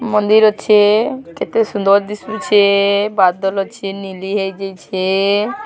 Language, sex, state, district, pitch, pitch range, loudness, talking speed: Odia, female, Odisha, Sambalpur, 200 Hz, 195-215 Hz, -15 LUFS, 105 wpm